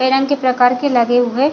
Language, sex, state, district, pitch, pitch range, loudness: Hindi, female, Chhattisgarh, Bilaspur, 255 Hz, 245-275 Hz, -14 LUFS